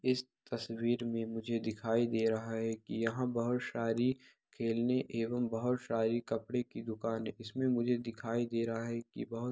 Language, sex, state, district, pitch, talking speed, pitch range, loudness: Hindi, male, Bihar, Araria, 115 Hz, 185 wpm, 115-120 Hz, -36 LUFS